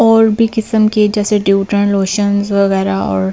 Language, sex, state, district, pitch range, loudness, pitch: Hindi, female, Delhi, New Delhi, 195-215 Hz, -13 LUFS, 205 Hz